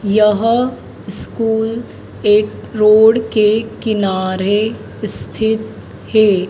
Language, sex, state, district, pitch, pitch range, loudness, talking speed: Hindi, female, Madhya Pradesh, Dhar, 215 Hz, 210-225 Hz, -15 LUFS, 75 wpm